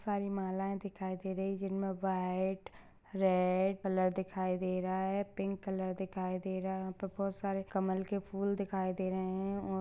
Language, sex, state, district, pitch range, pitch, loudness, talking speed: Hindi, female, Maharashtra, Sindhudurg, 185-195 Hz, 190 Hz, -36 LUFS, 190 wpm